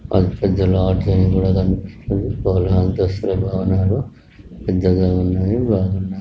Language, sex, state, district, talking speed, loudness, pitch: Telugu, female, Telangana, Karimnagar, 105 wpm, -18 LUFS, 95 Hz